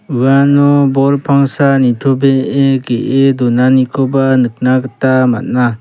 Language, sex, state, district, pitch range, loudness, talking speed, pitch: Garo, male, Meghalaya, South Garo Hills, 125-135 Hz, -11 LUFS, 95 wpm, 135 Hz